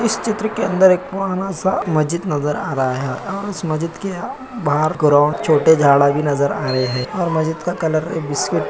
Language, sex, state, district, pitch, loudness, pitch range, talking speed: Hindi, male, Uttar Pradesh, Hamirpur, 160 Hz, -18 LUFS, 145-190 Hz, 220 wpm